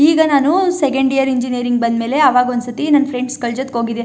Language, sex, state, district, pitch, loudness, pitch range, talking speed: Kannada, female, Karnataka, Chamarajanagar, 260 Hz, -15 LUFS, 245-285 Hz, 195 wpm